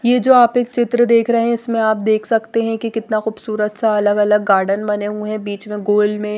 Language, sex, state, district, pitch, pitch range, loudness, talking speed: Hindi, female, Odisha, Nuapada, 215 Hz, 210-230 Hz, -16 LUFS, 255 wpm